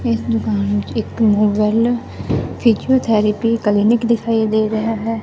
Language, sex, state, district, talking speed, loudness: Punjabi, female, Punjab, Fazilka, 150 wpm, -17 LUFS